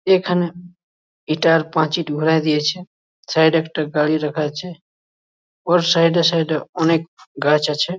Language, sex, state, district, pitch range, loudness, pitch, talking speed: Bengali, male, West Bengal, Jhargram, 155-175 Hz, -18 LUFS, 165 Hz, 145 wpm